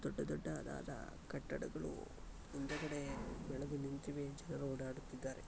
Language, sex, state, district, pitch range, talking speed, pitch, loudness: Kannada, male, Karnataka, Mysore, 130-145 Hz, 85 wpm, 140 Hz, -46 LUFS